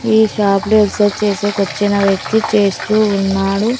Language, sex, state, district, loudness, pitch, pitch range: Telugu, female, Andhra Pradesh, Sri Satya Sai, -14 LUFS, 205 Hz, 200-215 Hz